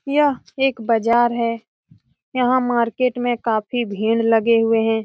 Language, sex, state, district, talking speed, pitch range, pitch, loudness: Hindi, female, Bihar, Jamui, 140 wpm, 225-250 Hz, 235 Hz, -19 LUFS